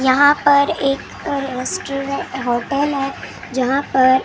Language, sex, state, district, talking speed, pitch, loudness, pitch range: Hindi, female, Maharashtra, Gondia, 125 wpm, 275 Hz, -18 LUFS, 260-280 Hz